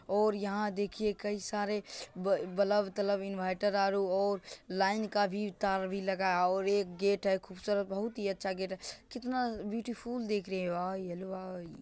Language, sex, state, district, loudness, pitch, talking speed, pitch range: Magahi, male, Bihar, Gaya, -34 LUFS, 200 Hz, 185 wpm, 190-205 Hz